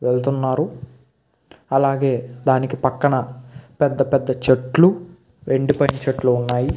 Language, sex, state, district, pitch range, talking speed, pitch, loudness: Telugu, male, Andhra Pradesh, Visakhapatnam, 125-140 Hz, 90 wpm, 135 Hz, -19 LUFS